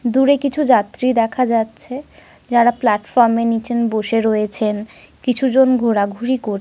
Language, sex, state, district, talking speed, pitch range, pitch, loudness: Bengali, female, Jharkhand, Sahebganj, 125 wpm, 220-255 Hz, 235 Hz, -17 LUFS